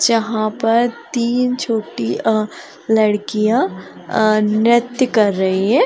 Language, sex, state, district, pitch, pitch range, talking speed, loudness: Hindi, female, Bihar, Saran, 220 Hz, 215-235 Hz, 110 wpm, -17 LUFS